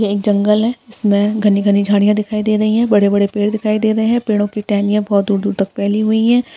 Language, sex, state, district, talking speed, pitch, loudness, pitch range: Hindi, female, Bihar, Darbhanga, 240 wpm, 210 Hz, -15 LUFS, 205-220 Hz